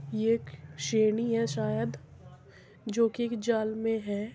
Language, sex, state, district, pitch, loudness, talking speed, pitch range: Hindi, female, Uttar Pradesh, Muzaffarnagar, 220 Hz, -30 LUFS, 150 wpm, 205-230 Hz